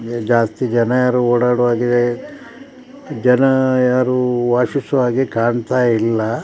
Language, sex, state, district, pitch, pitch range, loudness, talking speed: Kannada, male, Karnataka, Dakshina Kannada, 125 Hz, 120-130 Hz, -16 LUFS, 85 wpm